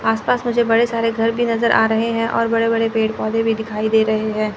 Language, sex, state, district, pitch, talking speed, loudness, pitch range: Hindi, female, Chandigarh, Chandigarh, 225 Hz, 275 wpm, -18 LUFS, 220-230 Hz